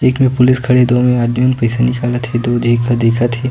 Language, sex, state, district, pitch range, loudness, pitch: Chhattisgarhi, male, Chhattisgarh, Sukma, 120-125 Hz, -13 LUFS, 120 Hz